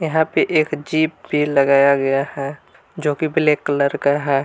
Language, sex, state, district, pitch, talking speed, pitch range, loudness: Hindi, male, Jharkhand, Palamu, 145 Hz, 190 wpm, 140-155 Hz, -18 LUFS